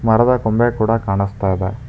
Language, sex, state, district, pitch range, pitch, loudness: Kannada, male, Karnataka, Bangalore, 100-120 Hz, 110 Hz, -17 LUFS